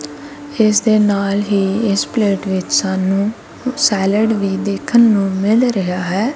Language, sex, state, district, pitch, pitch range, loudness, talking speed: Punjabi, female, Punjab, Kapurthala, 205 Hz, 195-225 Hz, -15 LUFS, 140 wpm